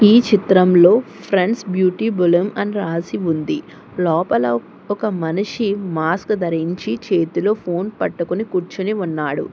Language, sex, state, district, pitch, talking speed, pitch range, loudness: Telugu, female, Telangana, Hyderabad, 185 Hz, 115 wpm, 170-205 Hz, -18 LUFS